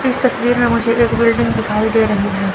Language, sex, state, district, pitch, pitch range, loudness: Hindi, male, Chandigarh, Chandigarh, 230 Hz, 210-240 Hz, -15 LUFS